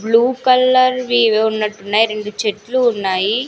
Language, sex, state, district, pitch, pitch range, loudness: Telugu, female, Andhra Pradesh, Sri Satya Sai, 225 Hz, 210-250 Hz, -15 LUFS